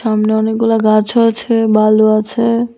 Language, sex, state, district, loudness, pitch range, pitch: Bengali, female, Tripura, West Tripura, -12 LUFS, 215-230 Hz, 220 Hz